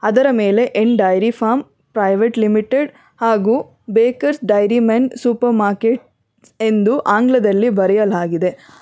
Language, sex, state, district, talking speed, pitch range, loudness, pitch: Kannada, female, Karnataka, Bangalore, 110 wpm, 210-245 Hz, -16 LUFS, 225 Hz